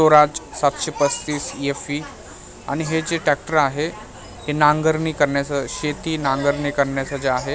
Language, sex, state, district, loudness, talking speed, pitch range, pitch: Marathi, male, Maharashtra, Mumbai Suburban, -21 LUFS, 135 wpm, 140-155 Hz, 145 Hz